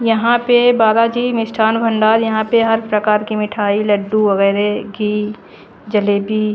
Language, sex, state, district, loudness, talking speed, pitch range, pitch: Hindi, female, Haryana, Charkhi Dadri, -15 LUFS, 145 wpm, 210-225 Hz, 215 Hz